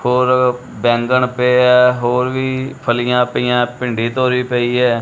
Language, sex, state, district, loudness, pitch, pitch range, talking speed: Punjabi, male, Punjab, Kapurthala, -15 LUFS, 125 Hz, 120-125 Hz, 145 wpm